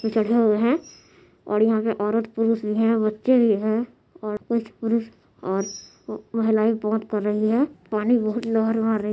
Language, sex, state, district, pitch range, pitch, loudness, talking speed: Hindi, female, Bihar, Madhepura, 215-230 Hz, 220 Hz, -22 LUFS, 170 wpm